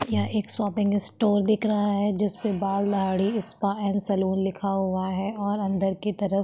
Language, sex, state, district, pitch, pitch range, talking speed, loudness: Hindi, female, Uttarakhand, Tehri Garhwal, 200 Hz, 195-205 Hz, 195 wpm, -22 LUFS